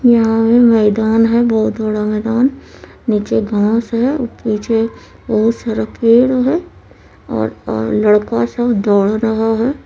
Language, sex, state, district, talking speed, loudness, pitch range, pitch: Maithili, female, Bihar, Supaul, 135 wpm, -14 LUFS, 215-235 Hz, 225 Hz